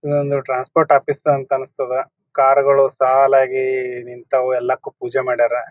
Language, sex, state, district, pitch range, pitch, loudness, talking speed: Kannada, male, Karnataka, Bijapur, 130-140 Hz, 135 Hz, -17 LUFS, 135 wpm